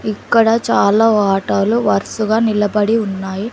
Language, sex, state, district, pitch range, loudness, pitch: Telugu, female, Andhra Pradesh, Sri Satya Sai, 200-225 Hz, -15 LUFS, 215 Hz